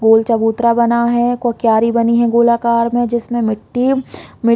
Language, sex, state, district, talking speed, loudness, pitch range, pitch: Hindi, female, Chhattisgarh, Balrampur, 210 wpm, -14 LUFS, 230-240 Hz, 235 Hz